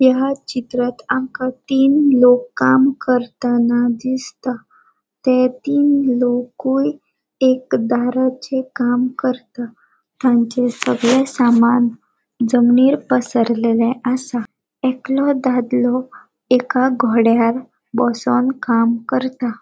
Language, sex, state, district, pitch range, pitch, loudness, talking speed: Konkani, female, Goa, North and South Goa, 240-260 Hz, 250 Hz, -17 LUFS, 85 wpm